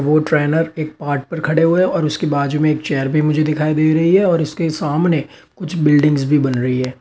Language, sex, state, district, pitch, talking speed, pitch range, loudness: Hindi, male, Uttar Pradesh, Varanasi, 155 Hz, 250 wpm, 145-165 Hz, -16 LUFS